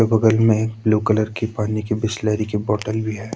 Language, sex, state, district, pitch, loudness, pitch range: Hindi, male, Uttarakhand, Tehri Garhwal, 110 Hz, -20 LUFS, 105-110 Hz